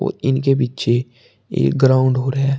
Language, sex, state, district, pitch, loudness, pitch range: Hindi, male, Uttar Pradesh, Shamli, 130 Hz, -17 LUFS, 125-135 Hz